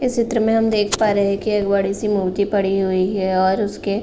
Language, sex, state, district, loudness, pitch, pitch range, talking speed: Hindi, female, Uttar Pradesh, Gorakhpur, -19 LUFS, 200 Hz, 195-210 Hz, 285 wpm